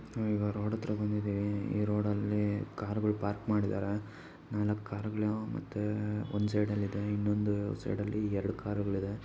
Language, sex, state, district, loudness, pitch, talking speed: Kannada, male, Karnataka, Mysore, -34 LUFS, 105 Hz, 160 wpm